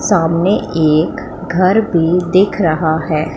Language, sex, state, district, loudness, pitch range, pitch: Hindi, female, Punjab, Pathankot, -14 LUFS, 160-185 Hz, 170 Hz